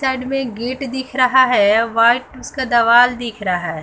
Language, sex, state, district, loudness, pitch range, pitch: Hindi, female, Bihar, West Champaran, -16 LUFS, 230-260 Hz, 250 Hz